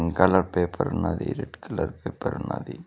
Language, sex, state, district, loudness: Telugu, male, Telangana, Mahabubabad, -26 LUFS